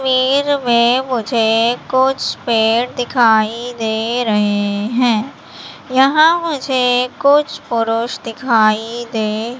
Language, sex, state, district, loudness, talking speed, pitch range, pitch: Hindi, female, Madhya Pradesh, Katni, -15 LUFS, 95 wpm, 225-260 Hz, 240 Hz